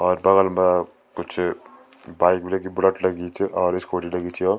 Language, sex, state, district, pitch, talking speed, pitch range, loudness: Garhwali, male, Uttarakhand, Tehri Garhwal, 90 Hz, 195 wpm, 90-95 Hz, -22 LUFS